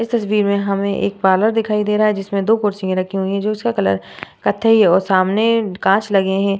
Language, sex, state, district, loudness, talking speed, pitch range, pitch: Hindi, female, Bihar, Vaishali, -17 LUFS, 225 wpm, 195-215 Hz, 200 Hz